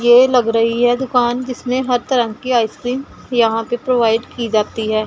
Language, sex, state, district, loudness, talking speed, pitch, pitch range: Hindi, female, Punjab, Pathankot, -16 LUFS, 190 wpm, 240 Hz, 230-250 Hz